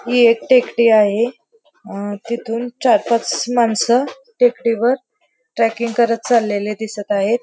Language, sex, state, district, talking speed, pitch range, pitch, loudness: Marathi, female, Maharashtra, Pune, 120 wpm, 225-245 Hz, 235 Hz, -17 LUFS